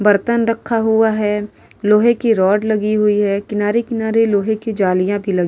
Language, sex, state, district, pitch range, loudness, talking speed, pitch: Hindi, female, Uttar Pradesh, Etah, 205-225 Hz, -16 LUFS, 185 wpm, 210 Hz